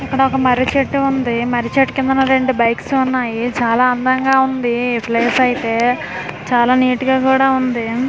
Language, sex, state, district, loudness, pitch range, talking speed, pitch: Telugu, female, Andhra Pradesh, Manyam, -15 LUFS, 240-265 Hz, 165 wpm, 255 Hz